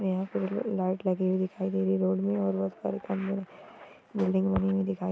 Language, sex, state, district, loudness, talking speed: Marwari, female, Rajasthan, Churu, -29 LUFS, 245 wpm